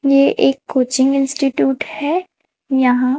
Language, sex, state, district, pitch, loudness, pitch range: Hindi, female, Chhattisgarh, Raipur, 270 Hz, -16 LUFS, 260-285 Hz